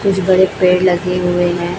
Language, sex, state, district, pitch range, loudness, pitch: Hindi, female, Chhattisgarh, Raipur, 175-185 Hz, -14 LUFS, 180 Hz